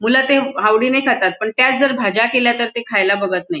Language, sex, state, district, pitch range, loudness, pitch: Marathi, female, Goa, North and South Goa, 215-265 Hz, -15 LUFS, 235 Hz